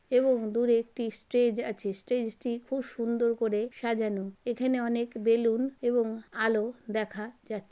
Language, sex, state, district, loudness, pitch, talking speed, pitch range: Bengali, female, West Bengal, Malda, -30 LUFS, 230 Hz, 140 wpm, 220-240 Hz